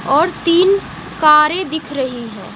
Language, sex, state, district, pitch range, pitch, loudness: Hindi, female, Haryana, Jhajjar, 265-345 Hz, 305 Hz, -14 LUFS